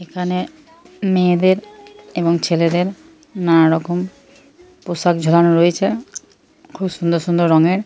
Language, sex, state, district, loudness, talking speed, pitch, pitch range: Bengali, female, West Bengal, Purulia, -17 LUFS, 100 wpm, 180 Hz, 170-230 Hz